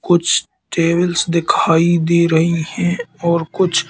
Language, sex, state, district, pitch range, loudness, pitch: Hindi, male, Madhya Pradesh, Katni, 165-170 Hz, -16 LUFS, 170 Hz